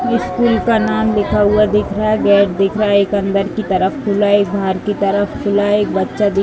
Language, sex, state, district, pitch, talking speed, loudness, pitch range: Hindi, female, Uttar Pradesh, Varanasi, 205 Hz, 260 wpm, -15 LUFS, 200-215 Hz